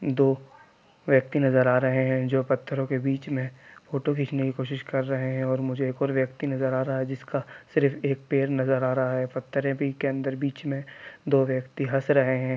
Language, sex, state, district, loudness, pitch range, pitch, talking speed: Hindi, male, Bihar, East Champaran, -26 LUFS, 130-140 Hz, 135 Hz, 215 wpm